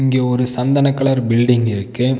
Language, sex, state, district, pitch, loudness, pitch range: Tamil, male, Tamil Nadu, Nilgiris, 125 Hz, -16 LUFS, 120-135 Hz